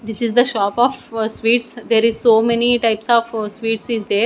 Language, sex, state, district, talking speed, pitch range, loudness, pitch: English, female, Odisha, Nuapada, 210 wpm, 225-235 Hz, -17 LUFS, 230 Hz